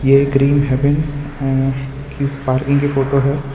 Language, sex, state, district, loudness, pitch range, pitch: Hindi, male, Gujarat, Valsad, -16 LUFS, 135-140 Hz, 140 Hz